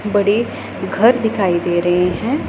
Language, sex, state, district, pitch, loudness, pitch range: Hindi, female, Punjab, Pathankot, 205 Hz, -17 LUFS, 180-225 Hz